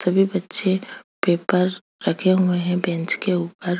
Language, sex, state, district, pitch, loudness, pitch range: Hindi, female, Chhattisgarh, Kabirdham, 180 Hz, -21 LUFS, 175-185 Hz